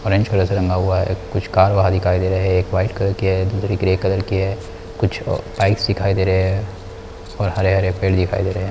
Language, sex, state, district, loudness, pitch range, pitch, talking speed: Hindi, male, Chhattisgarh, Korba, -18 LUFS, 95-100 Hz, 95 Hz, 250 wpm